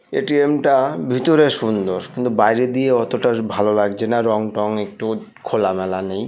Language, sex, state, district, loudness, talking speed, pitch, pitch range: Bengali, male, West Bengal, North 24 Parganas, -18 LUFS, 155 wpm, 110 Hz, 105-130 Hz